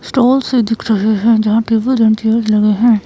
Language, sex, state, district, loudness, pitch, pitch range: Hindi, female, Himachal Pradesh, Shimla, -13 LUFS, 225 Hz, 215-235 Hz